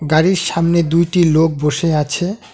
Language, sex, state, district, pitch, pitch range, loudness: Bengali, male, West Bengal, Alipurduar, 165 Hz, 155-175 Hz, -15 LUFS